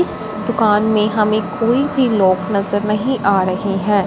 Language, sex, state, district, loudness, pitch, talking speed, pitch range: Hindi, female, Punjab, Fazilka, -16 LUFS, 215 Hz, 175 wpm, 200-225 Hz